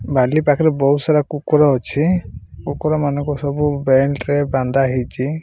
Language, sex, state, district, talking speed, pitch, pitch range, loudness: Odia, male, Odisha, Malkangiri, 145 wpm, 145 Hz, 135-150 Hz, -17 LUFS